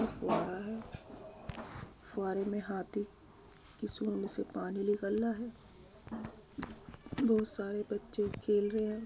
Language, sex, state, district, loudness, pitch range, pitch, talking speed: Hindi, female, Uttar Pradesh, Muzaffarnagar, -37 LUFS, 200-220 Hz, 210 Hz, 125 wpm